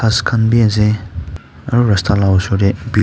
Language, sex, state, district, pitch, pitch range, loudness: Nagamese, male, Nagaland, Kohima, 105 Hz, 95-115 Hz, -14 LUFS